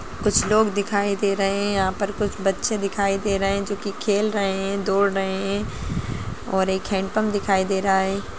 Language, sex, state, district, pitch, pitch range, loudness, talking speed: Hindi, female, Bihar, Gaya, 200 Hz, 195-205 Hz, -23 LUFS, 205 wpm